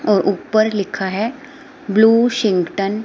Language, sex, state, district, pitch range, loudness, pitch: Hindi, female, Himachal Pradesh, Shimla, 200-235 Hz, -17 LUFS, 215 Hz